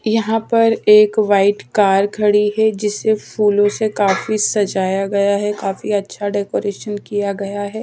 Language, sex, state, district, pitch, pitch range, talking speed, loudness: Hindi, female, Chhattisgarh, Raipur, 205 Hz, 200-215 Hz, 155 wpm, -16 LUFS